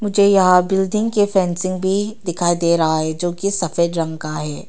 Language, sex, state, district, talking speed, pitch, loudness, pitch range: Hindi, female, Arunachal Pradesh, Papum Pare, 190 wpm, 180 Hz, -18 LUFS, 170-200 Hz